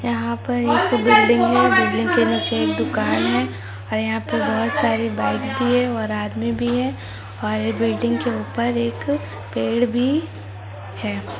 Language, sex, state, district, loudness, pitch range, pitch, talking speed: Hindi, female, Jharkhand, Jamtara, -20 LUFS, 105-125 Hz, 110 Hz, 165 wpm